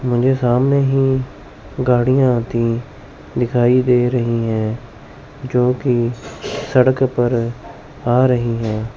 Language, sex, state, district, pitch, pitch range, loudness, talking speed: Hindi, male, Chandigarh, Chandigarh, 125 Hz, 115-130 Hz, -17 LUFS, 100 wpm